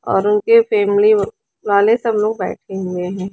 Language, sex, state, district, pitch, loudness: Hindi, female, Chandigarh, Chandigarh, 230 Hz, -16 LUFS